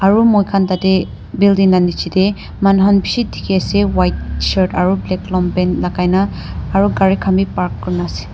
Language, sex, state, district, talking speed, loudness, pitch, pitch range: Nagamese, female, Nagaland, Dimapur, 160 wpm, -15 LUFS, 190 Hz, 180-195 Hz